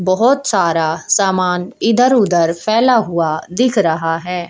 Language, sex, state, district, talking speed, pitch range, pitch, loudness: Hindi, male, Haryana, Jhajjar, 135 wpm, 165-230 Hz, 185 Hz, -14 LUFS